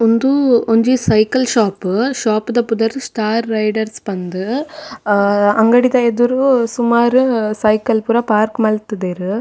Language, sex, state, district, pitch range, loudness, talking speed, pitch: Tulu, female, Karnataka, Dakshina Kannada, 215-245 Hz, -15 LUFS, 115 wpm, 225 Hz